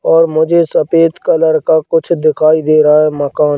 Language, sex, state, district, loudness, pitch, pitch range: Hindi, male, Madhya Pradesh, Katni, -11 LUFS, 155 Hz, 155-165 Hz